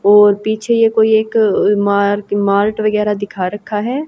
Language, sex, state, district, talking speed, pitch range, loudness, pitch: Hindi, female, Haryana, Rohtak, 160 wpm, 205-220 Hz, -14 LUFS, 210 Hz